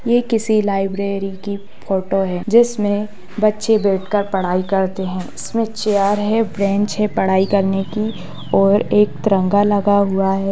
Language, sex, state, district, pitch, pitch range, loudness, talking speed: Hindi, female, Bihar, East Champaran, 200 Hz, 195-210 Hz, -17 LUFS, 155 wpm